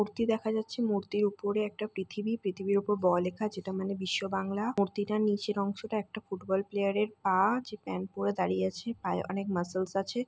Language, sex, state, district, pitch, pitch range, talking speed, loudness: Bengali, female, West Bengal, North 24 Parganas, 200 Hz, 190-215 Hz, 180 wpm, -32 LUFS